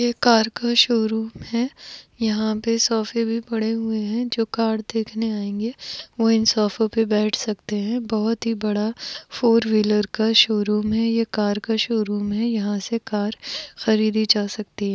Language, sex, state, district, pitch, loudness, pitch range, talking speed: Hindi, female, Goa, North and South Goa, 220 Hz, -21 LUFS, 215-230 Hz, 165 wpm